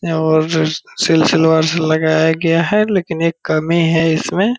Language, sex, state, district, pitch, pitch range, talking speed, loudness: Hindi, male, Bihar, Purnia, 160 Hz, 160-170 Hz, 145 wpm, -15 LUFS